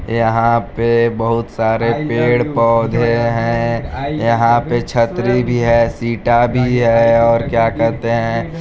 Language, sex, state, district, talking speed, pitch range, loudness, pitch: Hindi, male, Chhattisgarh, Balrampur, 125 wpm, 115-120 Hz, -15 LUFS, 115 Hz